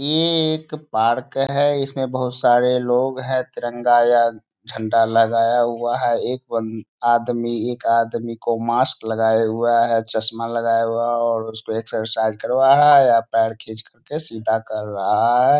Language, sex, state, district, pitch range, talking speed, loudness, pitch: Hindi, male, Bihar, Sitamarhi, 115-125 Hz, 165 wpm, -19 LUFS, 115 Hz